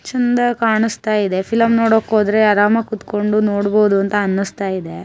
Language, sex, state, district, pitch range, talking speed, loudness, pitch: Kannada, male, Karnataka, Chamarajanagar, 200-225 Hz, 140 wpm, -16 LUFS, 215 Hz